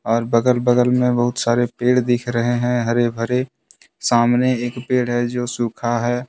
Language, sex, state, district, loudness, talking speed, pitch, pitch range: Hindi, male, Jharkhand, Deoghar, -19 LUFS, 180 wpm, 120 Hz, 120-125 Hz